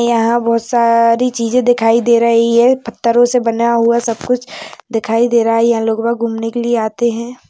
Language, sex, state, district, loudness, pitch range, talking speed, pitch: Hindi, female, Maharashtra, Aurangabad, -14 LUFS, 230-240 Hz, 200 wpm, 235 Hz